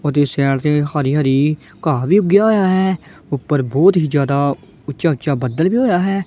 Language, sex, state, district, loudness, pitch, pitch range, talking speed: Punjabi, female, Punjab, Kapurthala, -16 LUFS, 150 Hz, 140-185 Hz, 190 wpm